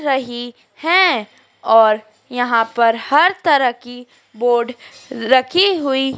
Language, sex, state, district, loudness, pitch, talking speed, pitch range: Hindi, female, Madhya Pradesh, Dhar, -15 LUFS, 245 Hz, 105 wpm, 235-280 Hz